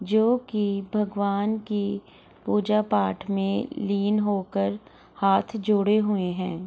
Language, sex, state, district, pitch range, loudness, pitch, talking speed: Hindi, female, Bihar, Gopalganj, 195-210 Hz, -25 LUFS, 200 Hz, 100 wpm